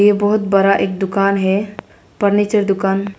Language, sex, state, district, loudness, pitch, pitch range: Hindi, female, Arunachal Pradesh, Lower Dibang Valley, -16 LUFS, 200 Hz, 195-205 Hz